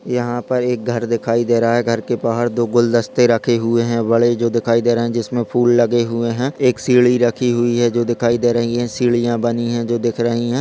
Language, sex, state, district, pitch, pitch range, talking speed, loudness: Hindi, male, Bihar, Begusarai, 120 Hz, 115-120 Hz, 250 wpm, -17 LUFS